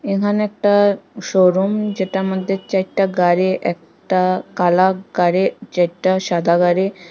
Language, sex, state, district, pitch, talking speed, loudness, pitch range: Bengali, female, Assam, Hailakandi, 190 Hz, 110 wpm, -17 LUFS, 180-195 Hz